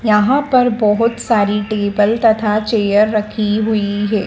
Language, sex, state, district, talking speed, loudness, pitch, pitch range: Hindi, female, Madhya Pradesh, Dhar, 140 wpm, -15 LUFS, 215 Hz, 210-225 Hz